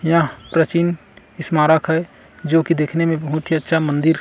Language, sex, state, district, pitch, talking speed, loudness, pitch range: Hindi, male, Chhattisgarh, Kabirdham, 160 Hz, 170 wpm, -18 LUFS, 155-165 Hz